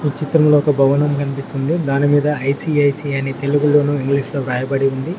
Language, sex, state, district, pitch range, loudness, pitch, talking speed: Telugu, male, Telangana, Mahabubabad, 140-150 Hz, -17 LUFS, 140 Hz, 140 wpm